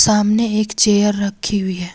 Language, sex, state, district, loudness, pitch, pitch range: Hindi, female, Jharkhand, Ranchi, -16 LUFS, 210 Hz, 200-215 Hz